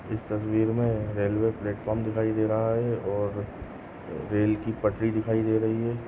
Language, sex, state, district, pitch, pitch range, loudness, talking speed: Hindi, male, Goa, North and South Goa, 110 Hz, 105-110 Hz, -27 LUFS, 170 wpm